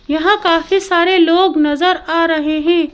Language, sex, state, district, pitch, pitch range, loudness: Hindi, female, Madhya Pradesh, Bhopal, 335 Hz, 315-365 Hz, -13 LUFS